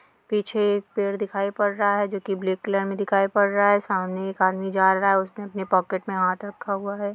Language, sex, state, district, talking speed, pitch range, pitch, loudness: Hindi, female, Uttar Pradesh, Deoria, 245 wpm, 190-205 Hz, 200 Hz, -23 LUFS